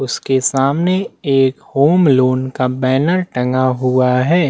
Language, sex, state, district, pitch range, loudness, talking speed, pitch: Hindi, male, Chhattisgarh, Jashpur, 130-150 Hz, -15 LUFS, 135 wpm, 135 Hz